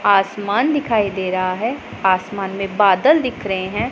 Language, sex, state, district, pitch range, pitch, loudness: Hindi, female, Punjab, Pathankot, 190-235 Hz, 200 Hz, -18 LUFS